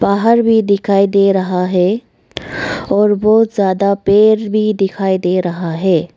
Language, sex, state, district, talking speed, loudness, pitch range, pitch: Hindi, female, Arunachal Pradesh, Lower Dibang Valley, 145 wpm, -13 LUFS, 185-215 Hz, 200 Hz